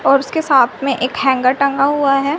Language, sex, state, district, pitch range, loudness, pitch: Hindi, female, Haryana, Rohtak, 265-285 Hz, -15 LUFS, 275 Hz